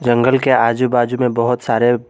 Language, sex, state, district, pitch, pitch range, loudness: Hindi, male, Jharkhand, Garhwa, 120 Hz, 120-130 Hz, -15 LUFS